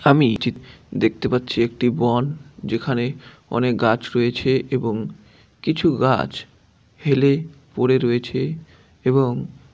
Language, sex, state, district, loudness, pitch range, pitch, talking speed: Bengali, male, West Bengal, Dakshin Dinajpur, -21 LUFS, 120-135 Hz, 125 Hz, 110 wpm